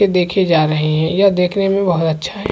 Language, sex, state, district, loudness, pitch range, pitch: Hindi, male, Chhattisgarh, Korba, -15 LUFS, 160-195 Hz, 180 Hz